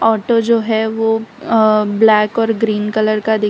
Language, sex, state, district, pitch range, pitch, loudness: Hindi, female, Gujarat, Valsad, 215-225 Hz, 220 Hz, -14 LUFS